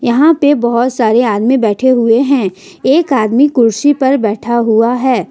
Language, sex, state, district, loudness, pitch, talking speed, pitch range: Hindi, female, Jharkhand, Ranchi, -11 LUFS, 245 Hz, 170 wpm, 225-265 Hz